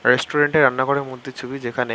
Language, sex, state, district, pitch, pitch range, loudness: Bengali, male, West Bengal, Malda, 130 Hz, 125-140 Hz, -19 LUFS